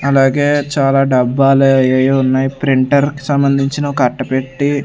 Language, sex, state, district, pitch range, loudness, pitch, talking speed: Telugu, male, Andhra Pradesh, Sri Satya Sai, 130-140 Hz, -13 LUFS, 135 Hz, 125 wpm